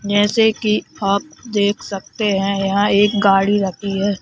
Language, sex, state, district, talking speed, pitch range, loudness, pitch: Hindi, male, Madhya Pradesh, Bhopal, 155 wpm, 195-210 Hz, -17 LUFS, 205 Hz